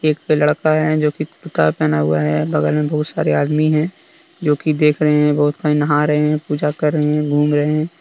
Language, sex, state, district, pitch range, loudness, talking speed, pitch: Hindi, male, Jharkhand, Deoghar, 145-155 Hz, -17 LUFS, 245 wpm, 150 Hz